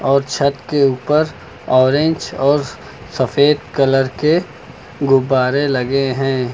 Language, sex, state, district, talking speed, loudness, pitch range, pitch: Hindi, male, Uttar Pradesh, Lucknow, 110 wpm, -16 LUFS, 130-145 Hz, 135 Hz